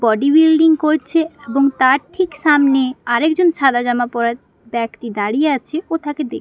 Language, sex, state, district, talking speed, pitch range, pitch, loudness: Bengali, female, West Bengal, Paschim Medinipur, 170 wpm, 240-315 Hz, 280 Hz, -16 LUFS